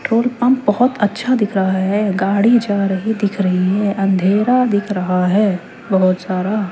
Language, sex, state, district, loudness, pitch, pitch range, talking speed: Hindi, female, Chandigarh, Chandigarh, -16 LUFS, 205 Hz, 190-220 Hz, 170 wpm